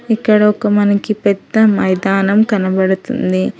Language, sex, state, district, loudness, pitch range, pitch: Telugu, female, Telangana, Hyderabad, -14 LUFS, 190-215 Hz, 205 Hz